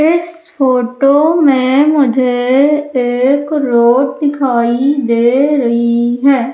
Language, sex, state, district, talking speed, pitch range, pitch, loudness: Hindi, female, Madhya Pradesh, Umaria, 90 wpm, 245-290 Hz, 265 Hz, -12 LUFS